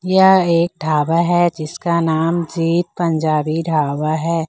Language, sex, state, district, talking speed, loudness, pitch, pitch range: Hindi, female, Chhattisgarh, Raipur, 135 wpm, -17 LUFS, 165 Hz, 155-175 Hz